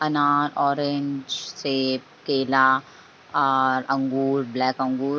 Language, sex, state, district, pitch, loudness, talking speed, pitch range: Hindi, female, Bihar, Bhagalpur, 135 Hz, -23 LUFS, 105 wpm, 130-140 Hz